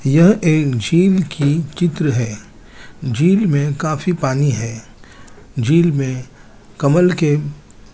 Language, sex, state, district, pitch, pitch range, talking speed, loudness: Hindi, male, Chandigarh, Chandigarh, 145 Hz, 130-165 Hz, 120 wpm, -16 LUFS